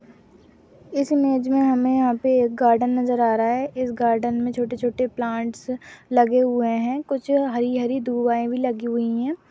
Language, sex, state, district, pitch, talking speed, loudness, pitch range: Hindi, female, Goa, North and South Goa, 245 Hz, 185 wpm, -22 LUFS, 240-260 Hz